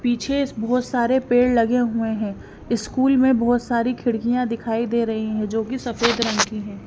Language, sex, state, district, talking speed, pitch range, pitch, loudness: Hindi, female, Haryana, Rohtak, 190 wpm, 225-245 Hz, 235 Hz, -21 LUFS